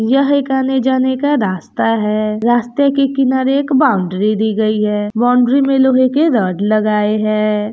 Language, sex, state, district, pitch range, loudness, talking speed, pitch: Hindi, female, Bihar, Gopalganj, 215-270 Hz, -14 LUFS, 165 wpm, 240 Hz